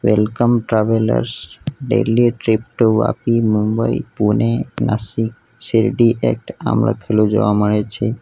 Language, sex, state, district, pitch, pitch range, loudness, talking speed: Gujarati, male, Gujarat, Valsad, 110 Hz, 105-115 Hz, -17 LUFS, 115 wpm